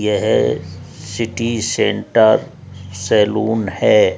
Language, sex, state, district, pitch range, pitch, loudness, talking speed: Hindi, male, Rajasthan, Jaipur, 105-120 Hz, 110 Hz, -16 LUFS, 70 wpm